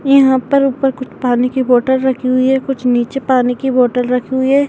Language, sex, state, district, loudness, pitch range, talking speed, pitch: Hindi, female, Bihar, Madhepura, -14 LUFS, 250-270 Hz, 230 wpm, 260 Hz